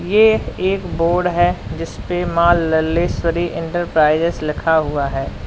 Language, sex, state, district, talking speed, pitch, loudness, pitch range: Hindi, male, Uttar Pradesh, Lalitpur, 120 wpm, 170 Hz, -17 LUFS, 160-175 Hz